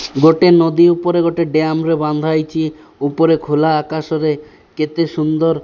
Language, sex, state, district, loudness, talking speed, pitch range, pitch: Odia, male, Odisha, Malkangiri, -15 LUFS, 150 wpm, 155-165 Hz, 160 Hz